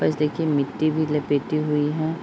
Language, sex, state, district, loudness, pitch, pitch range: Hindi, female, Uttar Pradesh, Deoria, -23 LUFS, 155 Hz, 150-155 Hz